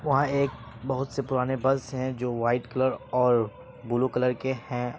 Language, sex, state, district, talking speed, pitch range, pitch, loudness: Hindi, male, Bihar, Saharsa, 170 wpm, 125-130 Hz, 130 Hz, -27 LUFS